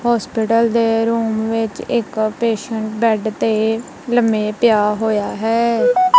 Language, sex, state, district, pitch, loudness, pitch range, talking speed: Punjabi, female, Punjab, Kapurthala, 225 Hz, -17 LUFS, 220-235 Hz, 115 wpm